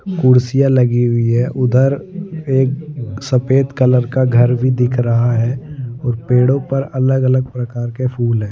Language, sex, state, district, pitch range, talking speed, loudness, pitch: Hindi, male, Bihar, Kaimur, 120-135 Hz, 160 wpm, -15 LUFS, 130 Hz